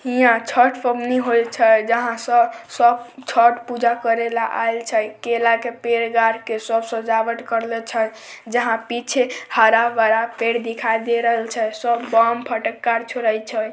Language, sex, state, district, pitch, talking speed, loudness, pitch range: Maithili, female, Bihar, Samastipur, 230 Hz, 120 wpm, -19 LUFS, 225-240 Hz